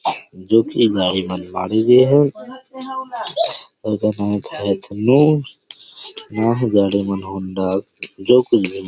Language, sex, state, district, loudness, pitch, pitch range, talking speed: Chhattisgarhi, male, Chhattisgarh, Rajnandgaon, -18 LUFS, 110 Hz, 95-145 Hz, 110 wpm